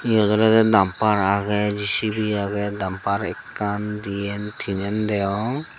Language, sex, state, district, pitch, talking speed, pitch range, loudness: Chakma, female, Tripura, Dhalai, 105 Hz, 115 wpm, 100-110 Hz, -21 LUFS